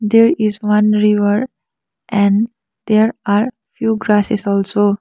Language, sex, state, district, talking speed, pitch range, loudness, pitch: English, female, Sikkim, Gangtok, 120 wpm, 205-220 Hz, -15 LUFS, 210 Hz